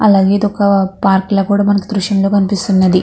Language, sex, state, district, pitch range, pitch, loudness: Telugu, female, Andhra Pradesh, Krishna, 195-200 Hz, 195 Hz, -13 LUFS